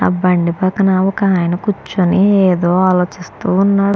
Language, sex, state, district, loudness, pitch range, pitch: Telugu, female, Andhra Pradesh, Chittoor, -14 LUFS, 180-195 Hz, 185 Hz